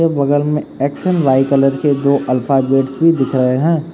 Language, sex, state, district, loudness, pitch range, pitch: Hindi, male, Uttar Pradesh, Lucknow, -14 LUFS, 135-150 Hz, 140 Hz